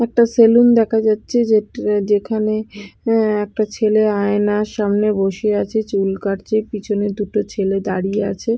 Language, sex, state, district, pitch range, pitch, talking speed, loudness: Bengali, female, Bihar, Katihar, 205-220 Hz, 210 Hz, 140 wpm, -17 LUFS